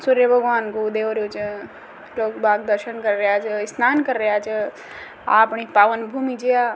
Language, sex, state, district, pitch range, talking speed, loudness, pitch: Rajasthani, female, Rajasthan, Nagaur, 210-245 Hz, 195 wpm, -20 LUFS, 220 Hz